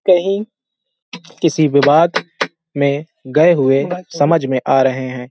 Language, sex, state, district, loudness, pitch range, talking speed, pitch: Hindi, male, Uttar Pradesh, Hamirpur, -15 LUFS, 135-175 Hz, 125 wpm, 155 Hz